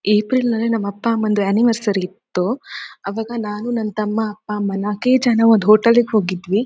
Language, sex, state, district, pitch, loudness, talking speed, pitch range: Kannada, female, Karnataka, Shimoga, 215 Hz, -18 LUFS, 160 wpm, 205-230 Hz